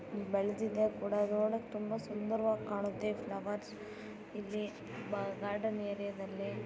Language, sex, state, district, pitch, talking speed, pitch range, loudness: Kannada, female, Karnataka, Belgaum, 210 Hz, 115 wpm, 200-215 Hz, -38 LUFS